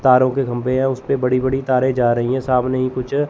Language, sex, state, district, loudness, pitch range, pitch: Hindi, male, Chandigarh, Chandigarh, -18 LUFS, 125-130 Hz, 130 Hz